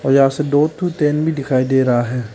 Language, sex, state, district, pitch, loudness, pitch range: Hindi, male, Arunachal Pradesh, Papum Pare, 140 Hz, -16 LUFS, 130-150 Hz